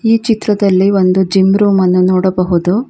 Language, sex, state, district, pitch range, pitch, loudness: Kannada, female, Karnataka, Bangalore, 185-205 Hz, 190 Hz, -11 LUFS